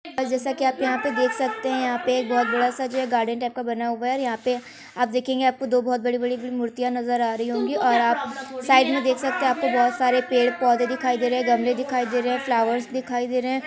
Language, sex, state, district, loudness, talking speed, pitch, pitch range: Hindi, female, Uttar Pradesh, Varanasi, -23 LUFS, 270 wpm, 250 Hz, 245-260 Hz